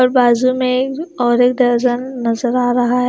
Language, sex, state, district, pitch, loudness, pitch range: Hindi, female, Himachal Pradesh, Shimla, 250 Hz, -15 LUFS, 245-255 Hz